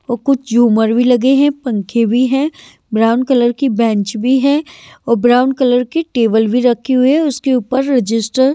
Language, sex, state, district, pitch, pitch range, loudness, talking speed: Hindi, female, Haryana, Jhajjar, 250 Hz, 230-270 Hz, -13 LUFS, 195 wpm